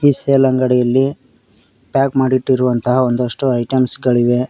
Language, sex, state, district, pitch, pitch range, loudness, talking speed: Kannada, male, Karnataka, Koppal, 130 Hz, 125-135 Hz, -15 LUFS, 95 wpm